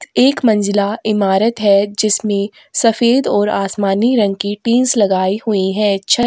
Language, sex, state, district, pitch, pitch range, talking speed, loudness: Hindi, female, Chhattisgarh, Korba, 210 Hz, 200-230 Hz, 145 wpm, -15 LUFS